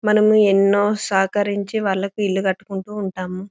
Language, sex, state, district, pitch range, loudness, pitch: Telugu, female, Telangana, Karimnagar, 195-210 Hz, -19 LUFS, 200 Hz